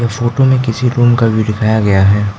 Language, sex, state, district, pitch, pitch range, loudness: Hindi, male, Arunachal Pradesh, Lower Dibang Valley, 115 Hz, 105-120 Hz, -12 LUFS